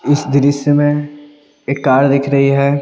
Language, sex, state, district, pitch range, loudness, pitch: Hindi, male, Bihar, Patna, 140-145 Hz, -13 LUFS, 140 Hz